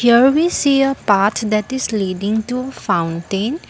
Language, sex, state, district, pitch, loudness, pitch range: English, female, Assam, Kamrup Metropolitan, 220 Hz, -17 LUFS, 200-265 Hz